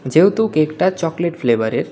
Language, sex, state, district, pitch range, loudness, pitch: Bengali, male, West Bengal, Alipurduar, 140-185 Hz, -17 LUFS, 165 Hz